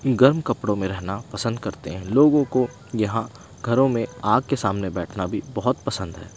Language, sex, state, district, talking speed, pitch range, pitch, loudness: Hindi, male, Himachal Pradesh, Shimla, 190 wpm, 95-130 Hz, 115 Hz, -23 LUFS